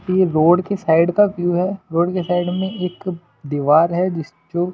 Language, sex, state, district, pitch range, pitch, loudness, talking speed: Hindi, male, Delhi, New Delhi, 165-185 Hz, 175 Hz, -18 LUFS, 215 wpm